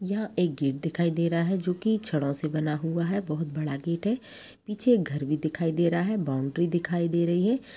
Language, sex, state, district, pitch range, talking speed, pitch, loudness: Hindi, female, Bihar, Samastipur, 155-190 Hz, 230 wpm, 170 Hz, -27 LUFS